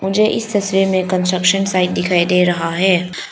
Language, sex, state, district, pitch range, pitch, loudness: Hindi, female, Arunachal Pradesh, Lower Dibang Valley, 180-195 Hz, 185 Hz, -15 LUFS